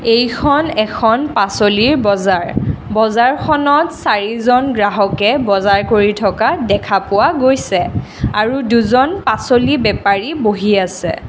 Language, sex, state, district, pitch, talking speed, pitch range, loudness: Assamese, female, Assam, Kamrup Metropolitan, 225 Hz, 100 wpm, 205-260 Hz, -14 LUFS